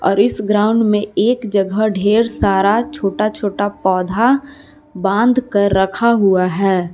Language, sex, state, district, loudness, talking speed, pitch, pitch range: Hindi, female, Jharkhand, Palamu, -15 LUFS, 120 wpm, 205 Hz, 195-230 Hz